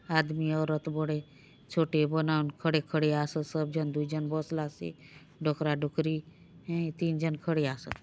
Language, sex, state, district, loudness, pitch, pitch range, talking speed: Halbi, female, Chhattisgarh, Bastar, -31 LUFS, 155 Hz, 150-160 Hz, 140 wpm